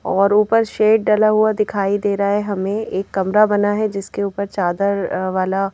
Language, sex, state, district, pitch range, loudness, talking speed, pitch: Hindi, female, Madhya Pradesh, Bhopal, 195-210 Hz, -18 LUFS, 190 wpm, 200 Hz